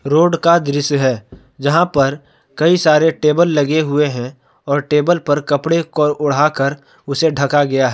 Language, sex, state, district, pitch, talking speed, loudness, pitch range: Hindi, male, Jharkhand, Palamu, 145 Hz, 165 wpm, -15 LUFS, 140-160 Hz